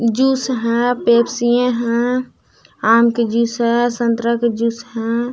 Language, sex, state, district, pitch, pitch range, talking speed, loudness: Hindi, female, Jharkhand, Palamu, 235 Hz, 230-245 Hz, 135 wpm, -17 LUFS